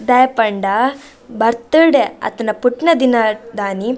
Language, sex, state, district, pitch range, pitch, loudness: Tulu, female, Karnataka, Dakshina Kannada, 220-260 Hz, 240 Hz, -15 LUFS